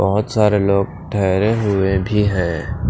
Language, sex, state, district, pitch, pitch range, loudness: Hindi, male, Maharashtra, Washim, 100 Hz, 95-105 Hz, -17 LUFS